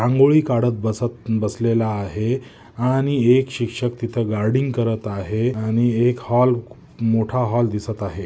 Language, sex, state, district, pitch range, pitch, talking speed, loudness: Marathi, male, Maharashtra, Nagpur, 110-125 Hz, 120 Hz, 140 wpm, -20 LUFS